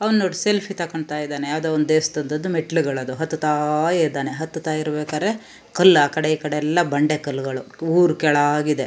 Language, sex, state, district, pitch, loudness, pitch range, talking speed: Kannada, female, Karnataka, Shimoga, 155 Hz, -20 LUFS, 150-165 Hz, 140 wpm